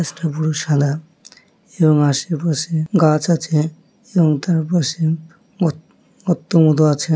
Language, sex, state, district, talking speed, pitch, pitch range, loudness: Bengali, male, West Bengal, North 24 Parganas, 110 wpm, 160 Hz, 155-175 Hz, -18 LUFS